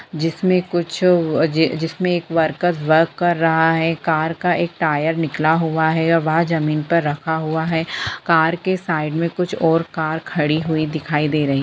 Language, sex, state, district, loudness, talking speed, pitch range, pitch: Hindi, female, Bihar, Lakhisarai, -18 LUFS, 195 wpm, 155-170 Hz, 160 Hz